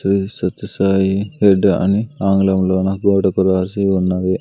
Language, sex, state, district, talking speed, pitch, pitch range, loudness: Telugu, male, Andhra Pradesh, Sri Satya Sai, 110 wpm, 95 Hz, 95-100 Hz, -16 LUFS